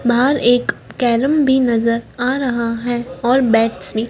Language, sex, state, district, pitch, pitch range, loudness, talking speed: Hindi, female, Madhya Pradesh, Dhar, 240 Hz, 230-260 Hz, -16 LUFS, 160 wpm